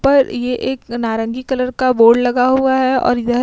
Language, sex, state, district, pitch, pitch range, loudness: Hindi, female, Uttar Pradesh, Muzaffarnagar, 250 Hz, 240-260 Hz, -15 LUFS